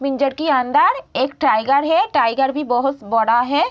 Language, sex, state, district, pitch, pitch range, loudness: Hindi, female, Bihar, Gopalganj, 275 Hz, 245-285 Hz, -17 LUFS